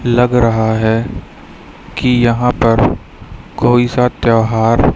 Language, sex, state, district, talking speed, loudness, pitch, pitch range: Hindi, female, Madhya Pradesh, Katni, 110 wpm, -13 LUFS, 120 Hz, 115-125 Hz